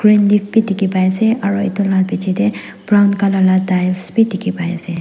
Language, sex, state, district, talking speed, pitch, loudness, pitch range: Nagamese, female, Nagaland, Dimapur, 215 wpm, 195 Hz, -15 LUFS, 185-205 Hz